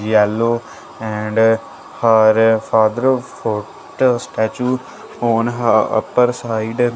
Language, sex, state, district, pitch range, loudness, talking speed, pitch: English, male, Punjab, Kapurthala, 110-120 Hz, -17 LUFS, 95 wpm, 115 Hz